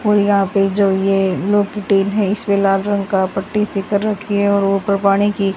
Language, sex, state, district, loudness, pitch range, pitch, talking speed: Hindi, female, Haryana, Jhajjar, -16 LUFS, 195-205 Hz, 200 Hz, 250 wpm